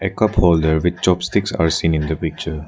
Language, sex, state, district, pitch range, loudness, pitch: English, male, Arunachal Pradesh, Lower Dibang Valley, 80-90 Hz, -18 LUFS, 85 Hz